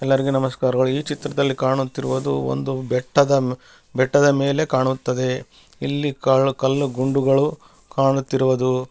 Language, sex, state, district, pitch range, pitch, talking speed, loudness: Kannada, male, Karnataka, Bellary, 130-140 Hz, 135 Hz, 100 wpm, -20 LUFS